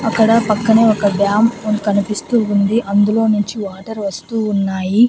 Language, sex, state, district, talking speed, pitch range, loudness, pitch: Telugu, female, Andhra Pradesh, Annamaya, 130 wpm, 200-225 Hz, -15 LUFS, 215 Hz